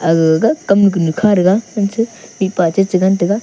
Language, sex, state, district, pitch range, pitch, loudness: Wancho, male, Arunachal Pradesh, Longding, 180-210 Hz, 195 Hz, -14 LUFS